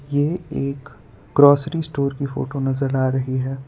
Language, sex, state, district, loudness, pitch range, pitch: Hindi, male, Gujarat, Valsad, -20 LUFS, 130-145 Hz, 140 Hz